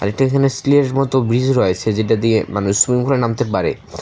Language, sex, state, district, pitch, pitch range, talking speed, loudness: Bengali, male, Tripura, West Tripura, 120 Hz, 110-135 Hz, 180 wpm, -16 LUFS